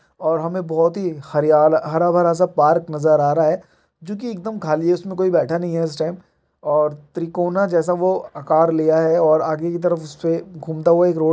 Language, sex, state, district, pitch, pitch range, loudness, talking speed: Hindi, male, Uttar Pradesh, Muzaffarnagar, 165 Hz, 155-175 Hz, -18 LUFS, 215 wpm